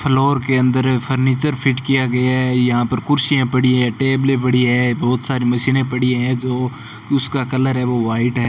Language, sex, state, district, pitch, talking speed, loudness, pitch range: Hindi, male, Rajasthan, Bikaner, 130 Hz, 200 wpm, -17 LUFS, 125-135 Hz